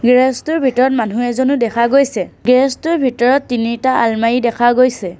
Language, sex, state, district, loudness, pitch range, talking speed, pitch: Assamese, female, Assam, Sonitpur, -14 LUFS, 235-260 Hz, 160 wpm, 250 Hz